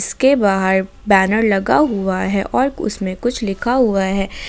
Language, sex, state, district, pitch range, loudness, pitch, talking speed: Hindi, female, Jharkhand, Ranchi, 195-240 Hz, -16 LUFS, 200 Hz, 160 wpm